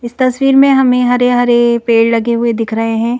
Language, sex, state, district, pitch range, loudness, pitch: Hindi, female, Madhya Pradesh, Bhopal, 230-250 Hz, -11 LUFS, 240 Hz